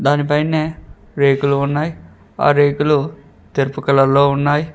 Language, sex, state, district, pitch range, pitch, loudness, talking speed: Telugu, male, Telangana, Mahabubabad, 140-150 Hz, 145 Hz, -16 LUFS, 115 wpm